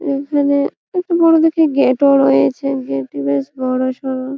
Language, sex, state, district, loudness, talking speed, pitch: Bengali, female, West Bengal, Malda, -15 LUFS, 150 wpm, 270 Hz